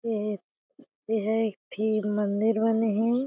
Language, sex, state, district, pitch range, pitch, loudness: Chhattisgarhi, female, Chhattisgarh, Jashpur, 210-225 Hz, 220 Hz, -27 LUFS